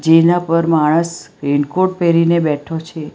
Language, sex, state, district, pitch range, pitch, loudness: Gujarati, female, Gujarat, Valsad, 155-170 Hz, 165 Hz, -15 LUFS